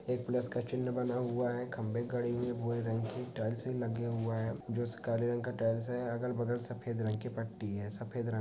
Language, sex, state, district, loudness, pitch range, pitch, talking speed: Hindi, male, Bihar, Sitamarhi, -36 LUFS, 115-125 Hz, 120 Hz, 235 wpm